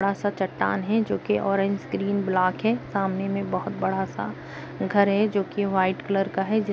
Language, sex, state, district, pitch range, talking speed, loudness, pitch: Hindi, female, Uttar Pradesh, Jyotiba Phule Nagar, 190-200 Hz, 205 wpm, -25 LUFS, 195 Hz